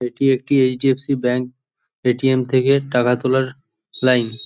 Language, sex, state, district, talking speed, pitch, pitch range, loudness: Bengali, male, West Bengal, Jhargram, 135 wpm, 130 Hz, 125-135 Hz, -18 LUFS